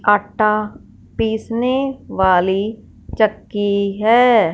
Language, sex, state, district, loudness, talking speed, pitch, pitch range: Hindi, male, Punjab, Fazilka, -17 LUFS, 65 wpm, 215 Hz, 200-225 Hz